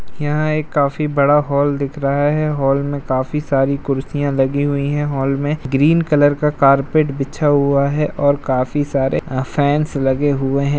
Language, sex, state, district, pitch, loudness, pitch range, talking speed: Hindi, male, Uttar Pradesh, Jalaun, 140 Hz, -17 LUFS, 135-145 Hz, 185 wpm